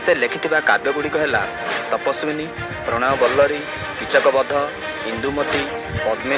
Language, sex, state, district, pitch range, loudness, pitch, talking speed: Odia, male, Odisha, Malkangiri, 110-145 Hz, -19 LUFS, 135 Hz, 85 wpm